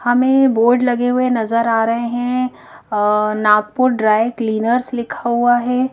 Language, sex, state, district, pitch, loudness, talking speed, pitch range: Hindi, female, Madhya Pradesh, Bhopal, 240 Hz, -16 LUFS, 150 wpm, 225-250 Hz